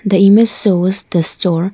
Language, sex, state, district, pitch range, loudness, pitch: English, female, Arunachal Pradesh, Lower Dibang Valley, 175-205 Hz, -12 LUFS, 190 Hz